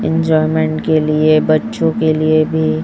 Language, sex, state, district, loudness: Hindi, male, Chhattisgarh, Raipur, -14 LUFS